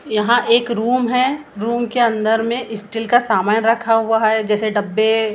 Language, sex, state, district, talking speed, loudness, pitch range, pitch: Hindi, female, Maharashtra, Gondia, 170 wpm, -17 LUFS, 220-240 Hz, 225 Hz